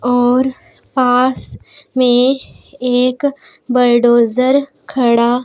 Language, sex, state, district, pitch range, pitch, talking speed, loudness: Hindi, female, Punjab, Pathankot, 245-260 Hz, 250 Hz, 65 wpm, -14 LUFS